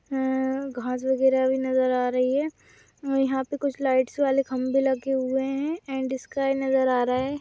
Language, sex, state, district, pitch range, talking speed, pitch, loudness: Hindi, female, Goa, North and South Goa, 260-270 Hz, 195 wpm, 265 Hz, -25 LUFS